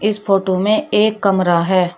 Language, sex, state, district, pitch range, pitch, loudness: Hindi, female, Uttar Pradesh, Shamli, 185-210 Hz, 195 Hz, -15 LUFS